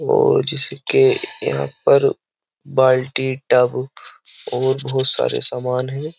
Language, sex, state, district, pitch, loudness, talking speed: Hindi, male, Uttar Pradesh, Jyotiba Phule Nagar, 135 Hz, -17 LUFS, 115 wpm